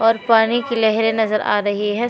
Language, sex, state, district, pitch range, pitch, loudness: Hindi, female, Uttar Pradesh, Shamli, 215-230 Hz, 225 Hz, -17 LUFS